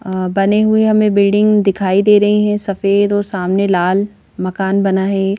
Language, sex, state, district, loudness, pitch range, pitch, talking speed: Hindi, female, Madhya Pradesh, Bhopal, -14 LUFS, 190-210 Hz, 200 Hz, 165 wpm